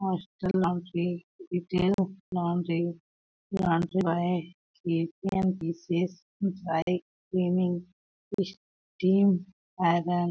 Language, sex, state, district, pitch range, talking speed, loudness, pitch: Hindi, female, Chhattisgarh, Balrampur, 170-185 Hz, 50 wpm, -29 LUFS, 180 Hz